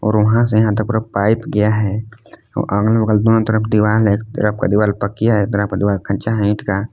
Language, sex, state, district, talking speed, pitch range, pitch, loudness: Hindi, male, Jharkhand, Palamu, 250 wpm, 105-110 Hz, 105 Hz, -16 LUFS